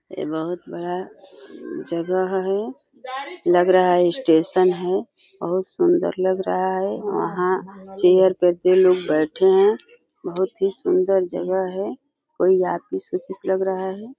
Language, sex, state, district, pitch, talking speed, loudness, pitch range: Hindi, female, Uttar Pradesh, Deoria, 185 Hz, 145 wpm, -20 LUFS, 180-235 Hz